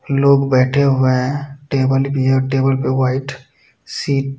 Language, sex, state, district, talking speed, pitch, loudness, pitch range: Hindi, male, Uttar Pradesh, Budaun, 165 wpm, 135 Hz, -16 LUFS, 130-140 Hz